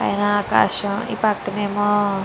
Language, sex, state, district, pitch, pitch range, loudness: Telugu, female, Andhra Pradesh, Chittoor, 205 Hz, 200-205 Hz, -20 LUFS